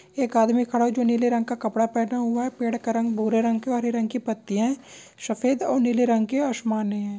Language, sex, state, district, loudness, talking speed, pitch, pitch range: Hindi, male, Maharashtra, Chandrapur, -24 LUFS, 260 wpm, 235 Hz, 225-245 Hz